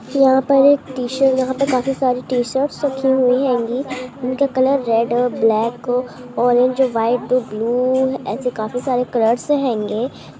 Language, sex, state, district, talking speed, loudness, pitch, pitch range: Hindi, female, Uttar Pradesh, Gorakhpur, 150 wpm, -18 LUFS, 255 Hz, 245-265 Hz